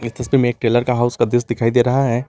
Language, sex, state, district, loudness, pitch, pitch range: Hindi, male, Jharkhand, Garhwa, -17 LUFS, 120 Hz, 120-125 Hz